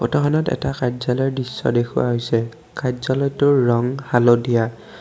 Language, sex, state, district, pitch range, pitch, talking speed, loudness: Assamese, male, Assam, Kamrup Metropolitan, 120-135 Hz, 125 Hz, 110 wpm, -20 LUFS